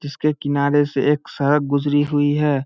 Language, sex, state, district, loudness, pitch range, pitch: Hindi, male, Bihar, Samastipur, -19 LUFS, 140-145 Hz, 145 Hz